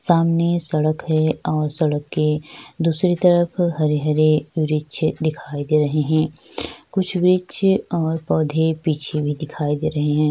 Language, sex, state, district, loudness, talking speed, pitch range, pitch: Hindi, female, Chhattisgarh, Sukma, -20 LUFS, 150 wpm, 150-170 Hz, 155 Hz